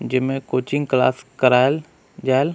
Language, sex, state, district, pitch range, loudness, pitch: Surgujia, male, Chhattisgarh, Sarguja, 130-145 Hz, -20 LUFS, 135 Hz